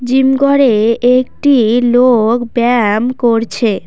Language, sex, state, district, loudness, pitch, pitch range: Bengali, female, West Bengal, Cooch Behar, -11 LUFS, 240 Hz, 230-255 Hz